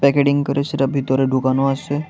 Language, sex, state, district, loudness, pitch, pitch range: Bengali, male, Tripura, West Tripura, -18 LUFS, 140 Hz, 135-140 Hz